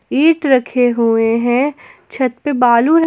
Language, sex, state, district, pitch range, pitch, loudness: Hindi, female, Jharkhand, Palamu, 240-285 Hz, 250 Hz, -14 LUFS